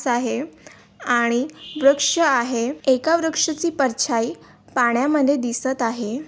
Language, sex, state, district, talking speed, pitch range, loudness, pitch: Marathi, female, Maharashtra, Aurangabad, 95 wpm, 240-300 Hz, -20 LUFS, 260 Hz